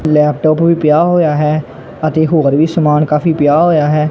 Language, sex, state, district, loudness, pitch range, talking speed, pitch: Punjabi, male, Punjab, Kapurthala, -12 LUFS, 150-160 Hz, 190 wpm, 155 Hz